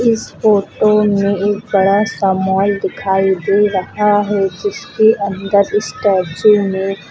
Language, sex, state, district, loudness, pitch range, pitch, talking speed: Hindi, female, Uttar Pradesh, Lucknow, -14 LUFS, 195-210 Hz, 200 Hz, 125 wpm